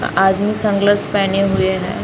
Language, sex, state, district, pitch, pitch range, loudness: Hindi, female, Bihar, Samastipur, 195 Hz, 190-205 Hz, -16 LUFS